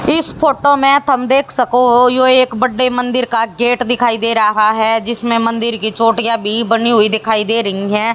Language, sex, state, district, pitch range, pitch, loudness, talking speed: Hindi, female, Haryana, Jhajjar, 225-250 Hz, 235 Hz, -12 LUFS, 205 wpm